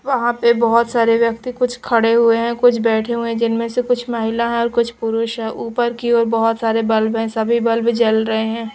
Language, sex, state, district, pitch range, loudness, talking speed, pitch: Hindi, female, Chhattisgarh, Raipur, 225-235 Hz, -17 LUFS, 235 wpm, 230 Hz